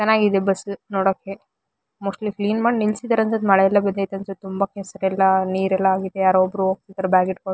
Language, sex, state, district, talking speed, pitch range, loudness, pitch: Kannada, female, Karnataka, Shimoga, 175 wpm, 190-205 Hz, -20 LUFS, 195 Hz